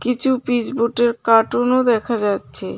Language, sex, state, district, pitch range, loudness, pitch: Bengali, female, West Bengal, Cooch Behar, 230-250 Hz, -18 LUFS, 240 Hz